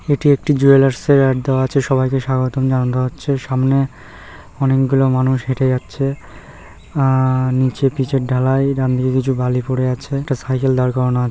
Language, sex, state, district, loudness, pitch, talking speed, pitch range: Bengali, male, West Bengal, North 24 Parganas, -16 LUFS, 130 Hz, 170 wpm, 130-135 Hz